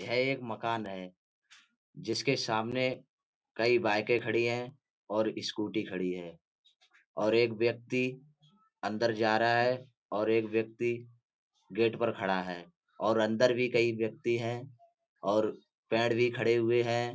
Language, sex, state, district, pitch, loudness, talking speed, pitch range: Hindi, male, Uttar Pradesh, Budaun, 115 Hz, -31 LUFS, 140 wpm, 110-125 Hz